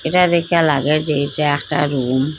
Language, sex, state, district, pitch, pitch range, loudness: Bengali, female, Assam, Hailakandi, 150 Hz, 140-160 Hz, -17 LUFS